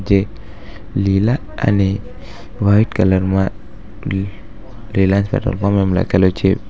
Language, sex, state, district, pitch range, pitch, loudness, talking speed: Gujarati, male, Gujarat, Valsad, 95-110 Hz, 100 Hz, -17 LUFS, 105 wpm